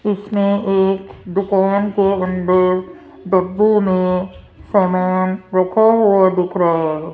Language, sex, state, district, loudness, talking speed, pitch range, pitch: Hindi, female, Rajasthan, Jaipur, -16 LUFS, 110 wpm, 185-200 Hz, 190 Hz